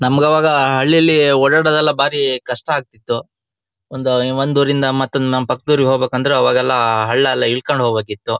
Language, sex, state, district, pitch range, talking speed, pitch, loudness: Kannada, male, Karnataka, Shimoga, 125-140 Hz, 150 wpm, 130 Hz, -15 LUFS